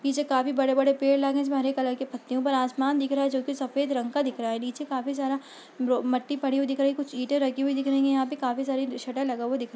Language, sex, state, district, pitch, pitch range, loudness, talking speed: Hindi, female, Uttar Pradesh, Budaun, 270 Hz, 260-275 Hz, -27 LUFS, 320 wpm